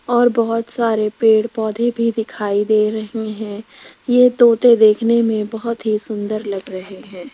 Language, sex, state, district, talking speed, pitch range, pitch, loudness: Hindi, female, Rajasthan, Jaipur, 165 wpm, 215-235 Hz, 225 Hz, -16 LUFS